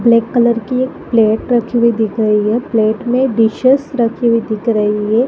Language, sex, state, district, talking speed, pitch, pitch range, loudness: Hindi, female, Chhattisgarh, Bilaspur, 205 wpm, 230 Hz, 220-245 Hz, -14 LUFS